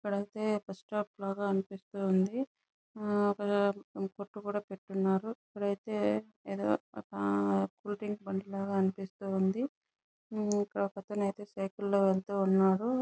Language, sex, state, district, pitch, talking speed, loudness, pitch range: Telugu, female, Andhra Pradesh, Chittoor, 200 Hz, 110 wpm, -33 LUFS, 190-205 Hz